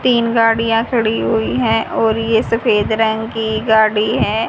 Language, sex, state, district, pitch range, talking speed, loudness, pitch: Hindi, female, Haryana, Jhajjar, 220-230 Hz, 160 wpm, -15 LUFS, 225 Hz